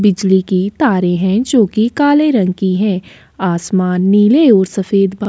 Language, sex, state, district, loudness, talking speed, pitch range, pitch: Hindi, female, Bihar, Kishanganj, -13 LUFS, 180 wpm, 185-220 Hz, 195 Hz